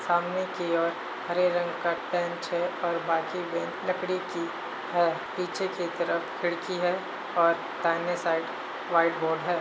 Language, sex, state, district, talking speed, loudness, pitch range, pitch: Hindi, male, Uttar Pradesh, Hamirpur, 155 wpm, -29 LUFS, 170-180 Hz, 175 Hz